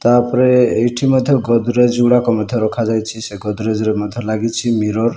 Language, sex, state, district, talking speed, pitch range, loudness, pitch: Odia, male, Odisha, Malkangiri, 160 wpm, 110-120 Hz, -15 LUFS, 115 Hz